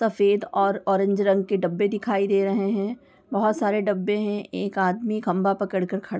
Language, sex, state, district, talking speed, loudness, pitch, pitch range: Hindi, female, Bihar, Gopalganj, 195 wpm, -23 LUFS, 200 Hz, 195-205 Hz